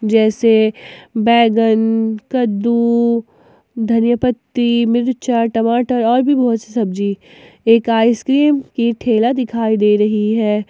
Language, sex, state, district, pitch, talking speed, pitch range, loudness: Hindi, female, Jharkhand, Ranchi, 230 Hz, 125 wpm, 220-240 Hz, -15 LUFS